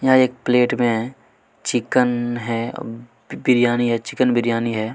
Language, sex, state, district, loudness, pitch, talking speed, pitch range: Hindi, male, Chhattisgarh, Kabirdham, -19 LUFS, 120 Hz, 145 wpm, 115-125 Hz